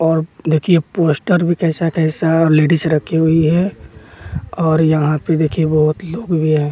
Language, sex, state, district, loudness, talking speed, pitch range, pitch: Hindi, male, Bihar, West Champaran, -15 LUFS, 160 wpm, 155-170 Hz, 160 Hz